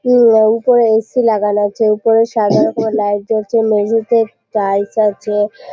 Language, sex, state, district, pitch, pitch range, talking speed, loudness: Bengali, female, West Bengal, Malda, 220 Hz, 210-225 Hz, 145 wpm, -14 LUFS